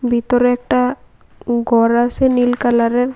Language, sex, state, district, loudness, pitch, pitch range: Bengali, female, Tripura, West Tripura, -15 LUFS, 245 Hz, 240-250 Hz